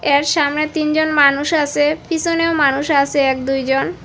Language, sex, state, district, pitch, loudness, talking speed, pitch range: Bengali, female, Assam, Hailakandi, 290 Hz, -16 LUFS, 150 wpm, 280-310 Hz